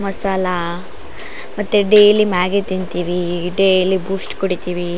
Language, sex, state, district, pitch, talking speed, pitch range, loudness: Kannada, female, Karnataka, Raichur, 185 Hz, 110 wpm, 180-195 Hz, -16 LUFS